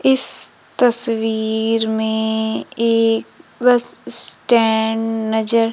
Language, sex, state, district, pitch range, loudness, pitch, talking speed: Hindi, female, Madhya Pradesh, Umaria, 220-235 Hz, -16 LUFS, 225 Hz, 75 wpm